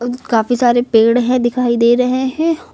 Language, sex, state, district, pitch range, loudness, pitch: Hindi, female, Uttar Pradesh, Lucknow, 240-255 Hz, -14 LUFS, 245 Hz